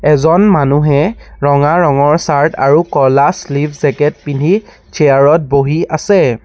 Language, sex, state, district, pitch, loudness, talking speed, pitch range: Assamese, male, Assam, Sonitpur, 150 Hz, -11 LUFS, 120 wpm, 140-165 Hz